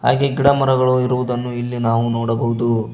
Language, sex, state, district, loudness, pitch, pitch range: Kannada, male, Karnataka, Koppal, -18 LUFS, 120 Hz, 115-130 Hz